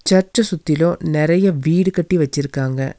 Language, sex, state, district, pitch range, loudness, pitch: Tamil, female, Tamil Nadu, Nilgiris, 150-185 Hz, -17 LUFS, 170 Hz